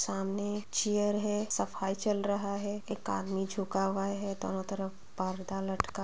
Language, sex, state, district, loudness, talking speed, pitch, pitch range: Hindi, female, Bihar, Bhagalpur, -34 LUFS, 180 wpm, 195 Hz, 195-205 Hz